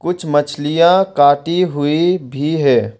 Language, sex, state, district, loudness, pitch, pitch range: Hindi, male, Arunachal Pradesh, Longding, -14 LUFS, 150 Hz, 145-175 Hz